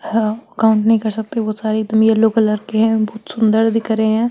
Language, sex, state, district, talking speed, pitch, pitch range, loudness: Marwari, female, Rajasthan, Nagaur, 225 wpm, 220 Hz, 220-225 Hz, -16 LUFS